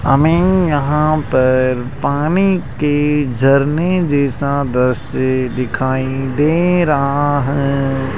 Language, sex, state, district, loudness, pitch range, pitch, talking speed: Hindi, male, Rajasthan, Jaipur, -15 LUFS, 130-150 Hz, 140 Hz, 90 wpm